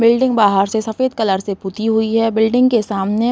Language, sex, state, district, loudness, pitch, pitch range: Hindi, female, Uttar Pradesh, Varanasi, -16 LUFS, 220 Hz, 205-230 Hz